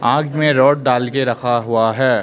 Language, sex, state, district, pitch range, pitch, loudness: Hindi, male, Arunachal Pradesh, Lower Dibang Valley, 120-140 Hz, 125 Hz, -16 LUFS